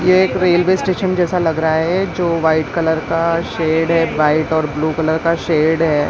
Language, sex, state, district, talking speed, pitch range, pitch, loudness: Hindi, female, Maharashtra, Mumbai Suburban, 185 wpm, 160-175 Hz, 165 Hz, -16 LUFS